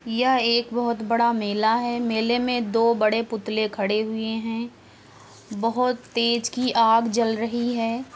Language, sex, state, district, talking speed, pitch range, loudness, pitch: Hindi, female, Uttar Pradesh, Hamirpur, 155 wpm, 220-240 Hz, -23 LUFS, 230 Hz